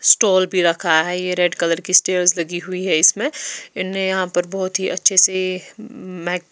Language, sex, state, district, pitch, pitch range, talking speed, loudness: Hindi, female, Bihar, West Champaran, 185 Hz, 175-190 Hz, 200 wpm, -17 LUFS